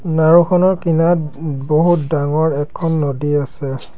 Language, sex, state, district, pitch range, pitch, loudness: Assamese, male, Assam, Sonitpur, 145-170 Hz, 155 Hz, -16 LUFS